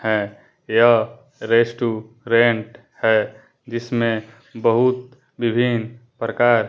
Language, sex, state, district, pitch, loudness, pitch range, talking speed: Hindi, male, Bihar, West Champaran, 115 Hz, -19 LUFS, 110-120 Hz, 70 wpm